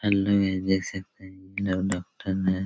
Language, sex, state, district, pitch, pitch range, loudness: Hindi, male, Chhattisgarh, Raigarh, 95 Hz, 95-100 Hz, -27 LUFS